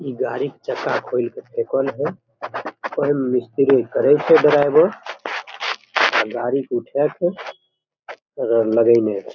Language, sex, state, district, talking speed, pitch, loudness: Maithili, male, Bihar, Begusarai, 105 wpm, 140 Hz, -19 LUFS